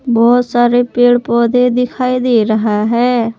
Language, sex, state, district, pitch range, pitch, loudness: Hindi, female, Jharkhand, Palamu, 230-245 Hz, 240 Hz, -12 LUFS